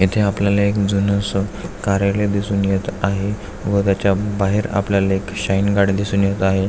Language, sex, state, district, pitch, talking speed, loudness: Marathi, male, Maharashtra, Aurangabad, 100 Hz, 160 wpm, -19 LUFS